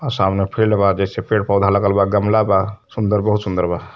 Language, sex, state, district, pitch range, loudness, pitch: Hindi, male, Uttar Pradesh, Varanasi, 95-105 Hz, -17 LUFS, 100 Hz